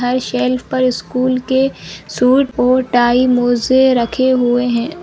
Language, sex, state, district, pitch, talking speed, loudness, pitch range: Hindi, female, Chhattisgarh, Bilaspur, 255 Hz, 145 wpm, -14 LUFS, 245-260 Hz